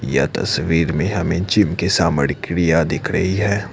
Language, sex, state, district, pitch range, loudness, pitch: Hindi, male, Assam, Kamrup Metropolitan, 80-95 Hz, -18 LUFS, 85 Hz